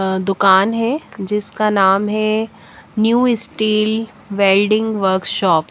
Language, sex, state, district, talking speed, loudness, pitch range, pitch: Hindi, female, Bihar, West Champaran, 105 wpm, -16 LUFS, 195-220 Hz, 210 Hz